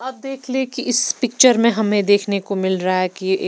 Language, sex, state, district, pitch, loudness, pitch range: Hindi, female, Punjab, Pathankot, 220 Hz, -18 LUFS, 190-255 Hz